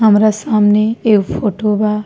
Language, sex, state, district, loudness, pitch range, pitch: Bhojpuri, female, Bihar, East Champaran, -13 LUFS, 210-215 Hz, 215 Hz